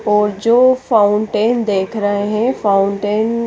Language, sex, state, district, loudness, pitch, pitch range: Hindi, female, Chandigarh, Chandigarh, -15 LUFS, 210 Hz, 205-230 Hz